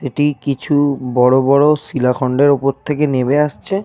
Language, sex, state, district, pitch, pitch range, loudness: Bengali, male, Jharkhand, Jamtara, 140 Hz, 130-145 Hz, -15 LUFS